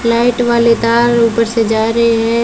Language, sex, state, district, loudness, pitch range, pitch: Hindi, female, Rajasthan, Bikaner, -12 LUFS, 230-235 Hz, 230 Hz